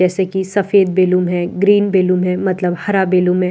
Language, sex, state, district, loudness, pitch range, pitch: Hindi, female, Delhi, New Delhi, -15 LUFS, 180-195 Hz, 185 Hz